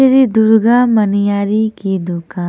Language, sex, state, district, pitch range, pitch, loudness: Hindi, female, Punjab, Kapurthala, 195-225 Hz, 215 Hz, -13 LUFS